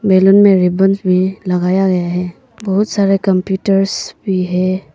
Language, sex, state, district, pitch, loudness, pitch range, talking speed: Hindi, female, Arunachal Pradesh, Papum Pare, 190 Hz, -14 LUFS, 180-195 Hz, 145 wpm